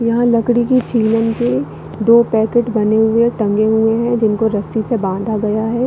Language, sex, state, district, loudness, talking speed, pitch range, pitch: Hindi, female, Chhattisgarh, Bilaspur, -15 LUFS, 195 wpm, 215-235 Hz, 225 Hz